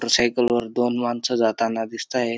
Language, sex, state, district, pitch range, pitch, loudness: Marathi, male, Maharashtra, Dhule, 115-120 Hz, 120 Hz, -22 LUFS